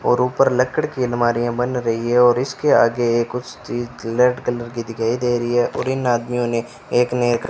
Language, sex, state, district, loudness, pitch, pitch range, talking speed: Hindi, male, Rajasthan, Bikaner, -19 LUFS, 120 Hz, 120-125 Hz, 225 wpm